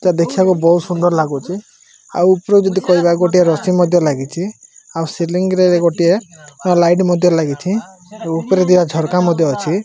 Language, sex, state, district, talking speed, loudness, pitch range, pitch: Odia, male, Odisha, Malkangiri, 160 wpm, -14 LUFS, 165-185 Hz, 175 Hz